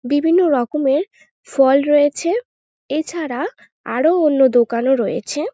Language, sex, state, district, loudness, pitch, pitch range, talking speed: Bengali, female, West Bengal, North 24 Parganas, -17 LUFS, 290 Hz, 265-335 Hz, 95 wpm